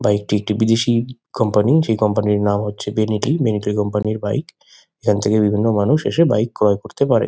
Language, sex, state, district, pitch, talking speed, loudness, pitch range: Bengali, male, West Bengal, Kolkata, 105 Hz, 205 wpm, -18 LUFS, 105-115 Hz